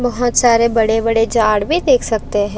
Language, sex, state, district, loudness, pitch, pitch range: Hindi, female, Maharashtra, Aurangabad, -14 LUFS, 230 Hz, 220-245 Hz